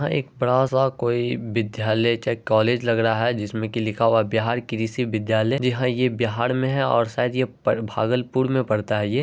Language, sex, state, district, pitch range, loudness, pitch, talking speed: Hindi, male, Bihar, Araria, 110-125 Hz, -22 LUFS, 115 Hz, 215 wpm